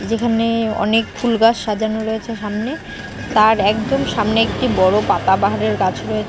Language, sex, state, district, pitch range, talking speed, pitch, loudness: Bengali, female, West Bengal, Cooch Behar, 210-230 Hz, 160 wpm, 220 Hz, -17 LUFS